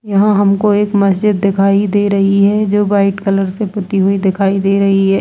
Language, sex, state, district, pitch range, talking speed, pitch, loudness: Hindi, female, Uttar Pradesh, Budaun, 195-205 Hz, 205 wpm, 200 Hz, -13 LUFS